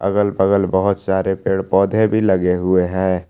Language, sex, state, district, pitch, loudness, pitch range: Hindi, male, Jharkhand, Palamu, 95 Hz, -17 LUFS, 95-100 Hz